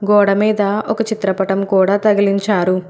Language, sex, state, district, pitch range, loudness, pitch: Telugu, female, Telangana, Hyderabad, 195-210 Hz, -15 LUFS, 200 Hz